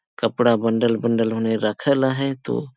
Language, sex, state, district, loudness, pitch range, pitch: Sadri, male, Chhattisgarh, Jashpur, -21 LUFS, 115-130 Hz, 115 Hz